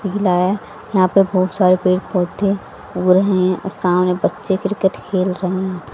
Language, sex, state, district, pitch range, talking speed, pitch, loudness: Hindi, female, Haryana, Rohtak, 185-195 Hz, 160 wpm, 185 Hz, -17 LUFS